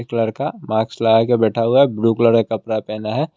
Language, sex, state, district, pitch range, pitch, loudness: Hindi, male, Assam, Kamrup Metropolitan, 110-120 Hz, 115 Hz, -17 LUFS